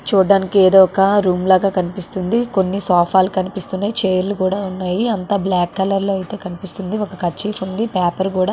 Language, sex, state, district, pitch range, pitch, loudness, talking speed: Telugu, female, Andhra Pradesh, Srikakulam, 185-200 Hz, 190 Hz, -17 LUFS, 175 wpm